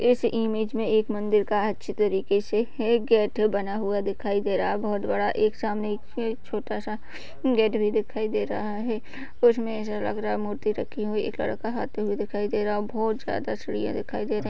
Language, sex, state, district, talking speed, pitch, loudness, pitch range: Hindi, female, Chhattisgarh, Raigarh, 205 wpm, 215 Hz, -26 LUFS, 205-220 Hz